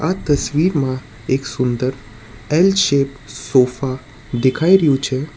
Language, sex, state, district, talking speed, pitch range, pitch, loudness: Gujarati, male, Gujarat, Valsad, 110 wpm, 130-150 Hz, 135 Hz, -17 LUFS